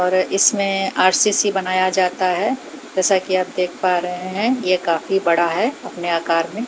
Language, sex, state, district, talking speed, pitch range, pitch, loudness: Hindi, female, Haryana, Jhajjar, 170 wpm, 180-195 Hz, 185 Hz, -18 LUFS